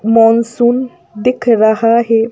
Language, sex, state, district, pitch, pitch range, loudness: Hindi, female, Madhya Pradesh, Bhopal, 230 Hz, 225-240 Hz, -12 LUFS